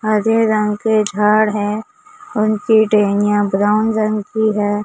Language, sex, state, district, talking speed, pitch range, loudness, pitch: Hindi, male, Maharashtra, Mumbai Suburban, 135 wpm, 210-220 Hz, -16 LUFS, 215 Hz